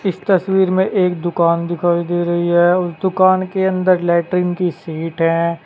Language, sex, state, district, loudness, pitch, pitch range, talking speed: Hindi, male, Uttar Pradesh, Saharanpur, -16 LUFS, 175 Hz, 170-185 Hz, 180 wpm